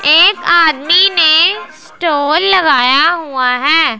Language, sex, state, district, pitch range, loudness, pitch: Hindi, female, Punjab, Pathankot, 300-350 Hz, -10 LUFS, 325 Hz